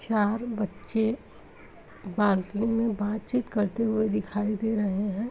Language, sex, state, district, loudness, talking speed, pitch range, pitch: Hindi, female, Uttar Pradesh, Muzaffarnagar, -28 LUFS, 115 wpm, 205-225 Hz, 215 Hz